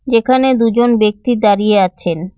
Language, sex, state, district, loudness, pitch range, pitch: Bengali, female, West Bengal, Cooch Behar, -13 LUFS, 200-240 Hz, 220 Hz